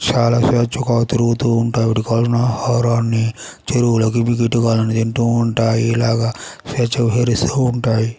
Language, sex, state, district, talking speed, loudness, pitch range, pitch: Telugu, male, Andhra Pradesh, Chittoor, 100 wpm, -17 LUFS, 115-120 Hz, 115 Hz